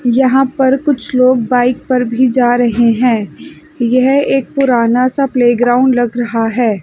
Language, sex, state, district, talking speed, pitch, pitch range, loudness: Hindi, female, Chandigarh, Chandigarh, 160 wpm, 250 Hz, 240-260 Hz, -12 LUFS